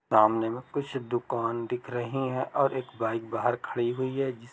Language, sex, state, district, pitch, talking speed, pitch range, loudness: Hindi, male, Bihar, East Champaran, 120 Hz, 200 wpm, 115-130 Hz, -29 LUFS